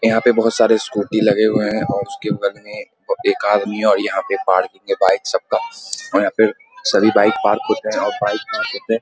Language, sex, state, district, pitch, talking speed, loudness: Hindi, male, Bihar, Muzaffarpur, 120 Hz, 240 wpm, -17 LUFS